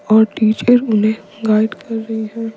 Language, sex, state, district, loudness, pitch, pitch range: Hindi, female, Bihar, Patna, -16 LUFS, 220 Hz, 215-225 Hz